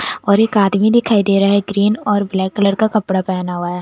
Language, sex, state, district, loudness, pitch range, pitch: Hindi, female, Bihar, West Champaran, -15 LUFS, 190-210 Hz, 200 Hz